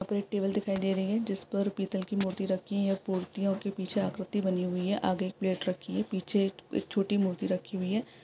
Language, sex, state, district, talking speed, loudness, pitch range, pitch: Hindi, female, Andhra Pradesh, Visakhapatnam, 270 wpm, -31 LUFS, 190-200 Hz, 195 Hz